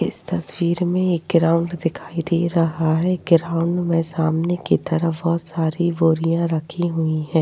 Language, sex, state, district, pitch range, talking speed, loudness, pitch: Hindi, female, Uttar Pradesh, Jyotiba Phule Nagar, 160-170 Hz, 160 wpm, -20 LUFS, 165 Hz